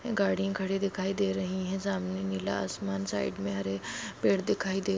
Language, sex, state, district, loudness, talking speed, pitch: Hindi, female, Bihar, Jahanabad, -31 LUFS, 180 wpm, 190 Hz